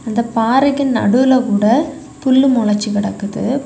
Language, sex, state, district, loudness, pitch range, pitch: Tamil, female, Tamil Nadu, Kanyakumari, -15 LUFS, 215-265 Hz, 235 Hz